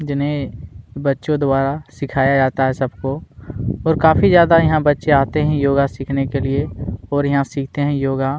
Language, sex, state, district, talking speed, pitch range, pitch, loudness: Hindi, male, Chhattisgarh, Kabirdham, 165 wpm, 135-145 Hz, 140 Hz, -17 LUFS